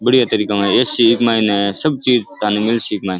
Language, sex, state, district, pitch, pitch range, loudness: Rajasthani, male, Rajasthan, Churu, 110 Hz, 105-120 Hz, -15 LUFS